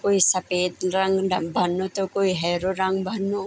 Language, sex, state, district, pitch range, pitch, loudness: Garhwali, female, Uttarakhand, Tehri Garhwal, 180-195 Hz, 190 Hz, -23 LUFS